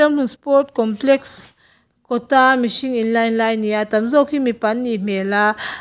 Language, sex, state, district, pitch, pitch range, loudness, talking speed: Mizo, female, Mizoram, Aizawl, 235 Hz, 215-270 Hz, -17 LUFS, 195 wpm